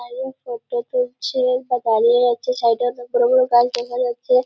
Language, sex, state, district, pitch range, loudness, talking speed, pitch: Bengali, female, West Bengal, Purulia, 240-255 Hz, -19 LUFS, 175 wpm, 250 Hz